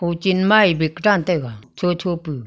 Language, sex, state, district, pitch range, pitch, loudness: Wancho, female, Arunachal Pradesh, Longding, 155-190 Hz, 175 Hz, -18 LUFS